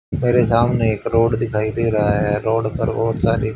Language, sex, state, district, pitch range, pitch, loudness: Hindi, male, Haryana, Charkhi Dadri, 110-115 Hz, 115 Hz, -18 LUFS